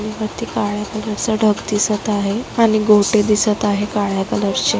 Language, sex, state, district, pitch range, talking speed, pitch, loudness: Marathi, female, Maharashtra, Dhule, 205-215 Hz, 175 wpm, 210 Hz, -17 LUFS